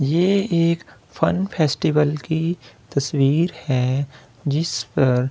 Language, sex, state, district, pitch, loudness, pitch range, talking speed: Hindi, male, Delhi, New Delhi, 150 Hz, -21 LUFS, 130-165 Hz, 115 wpm